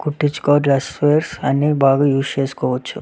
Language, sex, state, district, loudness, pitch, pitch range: Telugu, male, Andhra Pradesh, Visakhapatnam, -17 LUFS, 145 Hz, 135-150 Hz